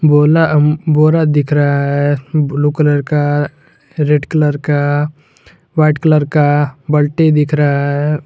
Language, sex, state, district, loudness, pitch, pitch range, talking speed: Hindi, male, Jharkhand, Garhwa, -13 LUFS, 150 Hz, 145-155 Hz, 125 wpm